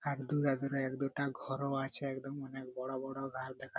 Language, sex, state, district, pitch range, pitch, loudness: Bengali, male, West Bengal, Purulia, 135-140 Hz, 135 Hz, -38 LUFS